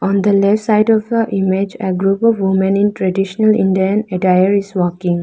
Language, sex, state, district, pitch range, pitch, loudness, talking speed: English, female, Arunachal Pradesh, Lower Dibang Valley, 190-210 Hz, 195 Hz, -14 LUFS, 195 wpm